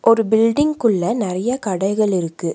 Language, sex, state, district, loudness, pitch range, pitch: Tamil, female, Tamil Nadu, Nilgiris, -18 LUFS, 185-230 Hz, 215 Hz